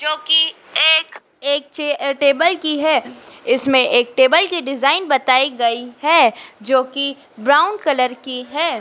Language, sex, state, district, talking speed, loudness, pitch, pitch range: Hindi, female, Madhya Pradesh, Dhar, 135 wpm, -16 LUFS, 285 Hz, 265-320 Hz